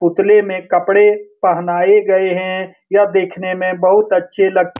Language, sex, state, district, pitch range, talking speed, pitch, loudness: Hindi, male, Bihar, Lakhisarai, 185-200 Hz, 165 wpm, 185 Hz, -14 LUFS